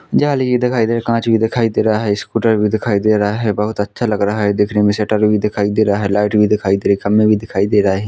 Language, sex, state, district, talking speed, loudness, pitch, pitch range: Hindi, male, Chhattisgarh, Korba, 310 wpm, -15 LUFS, 105 Hz, 105-110 Hz